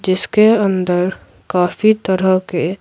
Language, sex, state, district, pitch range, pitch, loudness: Hindi, female, Bihar, Patna, 180-205 Hz, 185 Hz, -15 LUFS